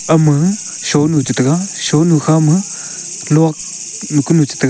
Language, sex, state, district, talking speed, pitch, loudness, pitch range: Wancho, male, Arunachal Pradesh, Longding, 140 wpm, 160 Hz, -14 LUFS, 150-180 Hz